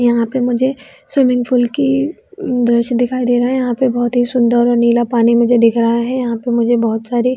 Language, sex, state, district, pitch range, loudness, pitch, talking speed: Hindi, female, Chhattisgarh, Bilaspur, 235-255 Hz, -14 LUFS, 245 Hz, 220 wpm